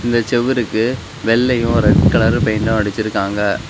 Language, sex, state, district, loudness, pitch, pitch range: Tamil, male, Tamil Nadu, Kanyakumari, -16 LUFS, 110 Hz, 105-120 Hz